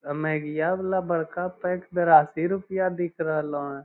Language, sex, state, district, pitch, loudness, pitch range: Magahi, male, Bihar, Lakhisarai, 170 Hz, -25 LUFS, 155-180 Hz